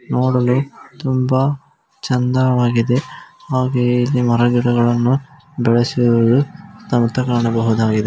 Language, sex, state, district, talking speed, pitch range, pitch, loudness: Kannada, male, Karnataka, Dharwad, 65 wpm, 120-130 Hz, 125 Hz, -17 LUFS